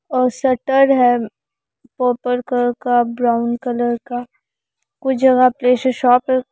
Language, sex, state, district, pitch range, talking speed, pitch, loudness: Hindi, female, Bihar, Araria, 245-260 Hz, 130 wpm, 250 Hz, -17 LUFS